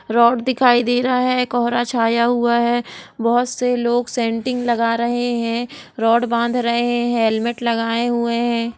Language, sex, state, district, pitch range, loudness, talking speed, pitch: Hindi, female, Bihar, Jahanabad, 235-245 Hz, -18 LUFS, 165 wpm, 235 Hz